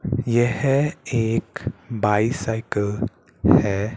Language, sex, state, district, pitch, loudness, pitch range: Hindi, male, Chandigarh, Chandigarh, 115 Hz, -22 LUFS, 105-125 Hz